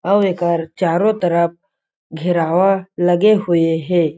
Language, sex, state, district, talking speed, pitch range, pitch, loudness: Chhattisgarhi, male, Chhattisgarh, Jashpur, 115 wpm, 170-190 Hz, 175 Hz, -16 LUFS